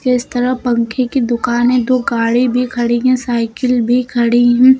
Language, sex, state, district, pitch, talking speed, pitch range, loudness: Hindi, female, Uttar Pradesh, Lucknow, 245 Hz, 185 wpm, 240-255 Hz, -14 LUFS